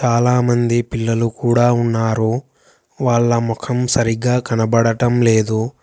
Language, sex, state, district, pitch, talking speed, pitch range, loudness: Telugu, male, Telangana, Hyderabad, 120 Hz, 95 wpm, 115-120 Hz, -16 LUFS